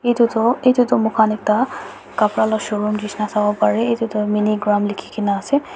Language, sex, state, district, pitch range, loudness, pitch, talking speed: Nagamese, female, Nagaland, Dimapur, 210-235 Hz, -18 LUFS, 215 Hz, 175 wpm